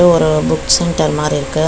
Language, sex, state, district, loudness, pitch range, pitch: Tamil, female, Tamil Nadu, Chennai, -14 LUFS, 155-170 Hz, 160 Hz